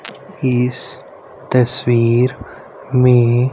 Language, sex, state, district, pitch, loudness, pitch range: Hindi, male, Haryana, Rohtak, 125 Hz, -15 LUFS, 120-130 Hz